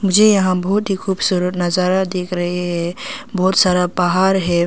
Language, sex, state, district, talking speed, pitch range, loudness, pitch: Hindi, female, Arunachal Pradesh, Longding, 165 wpm, 180-190 Hz, -17 LUFS, 185 Hz